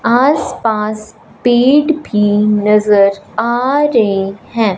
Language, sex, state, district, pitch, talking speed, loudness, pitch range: Hindi, female, Punjab, Fazilka, 220 Hz, 90 wpm, -13 LUFS, 210-250 Hz